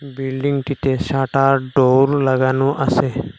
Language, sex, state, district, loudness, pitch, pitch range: Bengali, male, Assam, Hailakandi, -17 LUFS, 135 Hz, 130-140 Hz